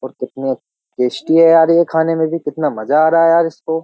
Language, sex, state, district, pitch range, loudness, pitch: Hindi, male, Uttar Pradesh, Jyotiba Phule Nagar, 135-165 Hz, -14 LUFS, 160 Hz